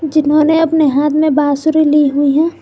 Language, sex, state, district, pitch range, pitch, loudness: Hindi, female, Jharkhand, Garhwa, 295-315 Hz, 300 Hz, -12 LUFS